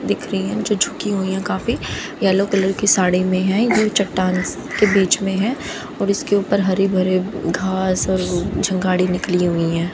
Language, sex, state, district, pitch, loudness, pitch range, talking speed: Hindi, female, Haryana, Jhajjar, 190 Hz, -18 LUFS, 185-200 Hz, 185 wpm